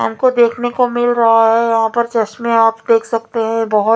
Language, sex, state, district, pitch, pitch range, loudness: Hindi, female, Punjab, Fazilka, 230 Hz, 225-235 Hz, -14 LUFS